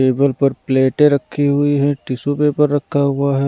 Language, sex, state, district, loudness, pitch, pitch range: Hindi, male, Punjab, Pathankot, -16 LUFS, 140 Hz, 135-145 Hz